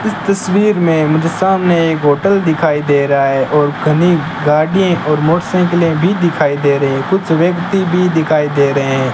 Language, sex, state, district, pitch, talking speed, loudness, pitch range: Hindi, male, Rajasthan, Bikaner, 160 Hz, 175 wpm, -13 LUFS, 150-180 Hz